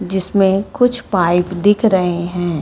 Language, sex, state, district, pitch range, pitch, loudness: Hindi, female, Chhattisgarh, Bilaspur, 175-205 Hz, 190 Hz, -15 LUFS